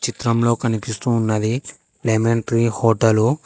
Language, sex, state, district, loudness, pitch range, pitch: Telugu, male, Telangana, Hyderabad, -19 LUFS, 110-120 Hz, 115 Hz